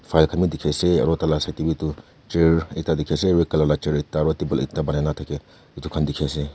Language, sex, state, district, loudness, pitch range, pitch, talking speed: Nagamese, male, Nagaland, Kohima, -22 LUFS, 75-80 Hz, 75 Hz, 185 wpm